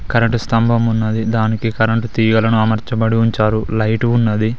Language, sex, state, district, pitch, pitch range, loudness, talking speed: Telugu, male, Telangana, Mahabubabad, 110 Hz, 110-115 Hz, -16 LUFS, 130 wpm